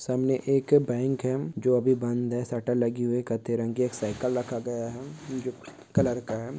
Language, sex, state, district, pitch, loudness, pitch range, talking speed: Hindi, male, Uttar Pradesh, Gorakhpur, 125 Hz, -28 LUFS, 120-130 Hz, 190 wpm